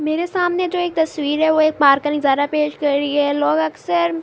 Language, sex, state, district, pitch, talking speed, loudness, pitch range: Urdu, female, Andhra Pradesh, Anantapur, 305 Hz, 240 wpm, -18 LUFS, 290-335 Hz